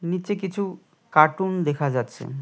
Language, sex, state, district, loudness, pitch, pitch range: Bengali, male, West Bengal, Cooch Behar, -23 LUFS, 170 Hz, 145-190 Hz